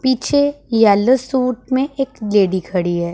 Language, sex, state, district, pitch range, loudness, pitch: Hindi, female, Punjab, Pathankot, 200-265 Hz, -16 LUFS, 250 Hz